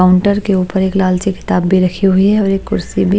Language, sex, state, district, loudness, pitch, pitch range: Hindi, female, Odisha, Malkangiri, -13 LUFS, 190 Hz, 185-195 Hz